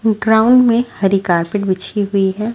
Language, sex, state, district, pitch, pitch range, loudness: Hindi, female, Haryana, Rohtak, 205 Hz, 195-220 Hz, -14 LUFS